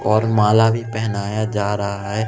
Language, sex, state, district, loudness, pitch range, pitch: Hindi, male, Madhya Pradesh, Umaria, -19 LUFS, 100-110 Hz, 110 Hz